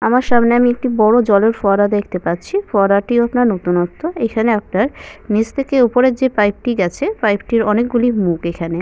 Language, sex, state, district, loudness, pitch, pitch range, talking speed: Bengali, female, West Bengal, Malda, -15 LUFS, 225 Hz, 200-245 Hz, 185 wpm